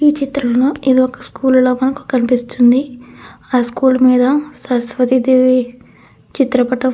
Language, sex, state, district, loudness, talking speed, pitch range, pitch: Telugu, female, Andhra Pradesh, Krishna, -14 LUFS, 130 wpm, 250-265 Hz, 255 Hz